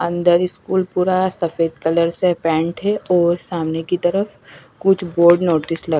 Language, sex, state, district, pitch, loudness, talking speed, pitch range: Hindi, female, Chandigarh, Chandigarh, 175 Hz, -18 LUFS, 160 wpm, 165-185 Hz